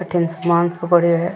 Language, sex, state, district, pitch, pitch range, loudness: Rajasthani, female, Rajasthan, Churu, 170 Hz, 170-175 Hz, -17 LUFS